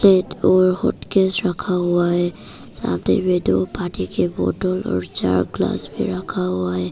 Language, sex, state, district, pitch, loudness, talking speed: Hindi, female, Arunachal Pradesh, Papum Pare, 175 Hz, -20 LUFS, 165 wpm